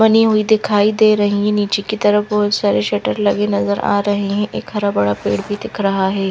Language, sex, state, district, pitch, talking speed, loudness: Hindi, female, Punjab, Fazilka, 205 Hz, 230 wpm, -16 LUFS